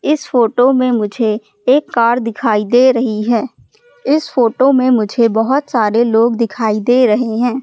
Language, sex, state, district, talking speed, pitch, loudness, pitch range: Hindi, female, Madhya Pradesh, Katni, 165 wpm, 240 Hz, -13 LUFS, 225-255 Hz